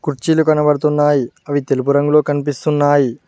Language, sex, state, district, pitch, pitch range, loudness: Telugu, male, Telangana, Mahabubabad, 145 Hz, 140-150 Hz, -15 LUFS